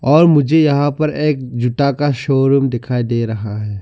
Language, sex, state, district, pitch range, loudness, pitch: Hindi, male, Arunachal Pradesh, Lower Dibang Valley, 120-145 Hz, -15 LUFS, 135 Hz